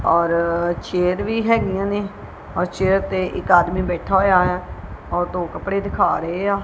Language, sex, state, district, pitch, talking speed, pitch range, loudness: Punjabi, male, Punjab, Kapurthala, 185 Hz, 170 wpm, 175-195 Hz, -20 LUFS